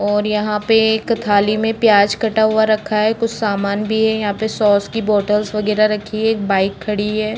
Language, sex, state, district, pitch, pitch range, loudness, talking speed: Hindi, female, Uttar Pradesh, Deoria, 215 Hz, 205-220 Hz, -16 LUFS, 220 wpm